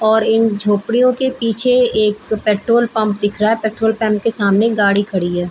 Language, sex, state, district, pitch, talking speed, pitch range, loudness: Hindi, female, Bihar, Saran, 220 Hz, 205 wpm, 205-230 Hz, -14 LUFS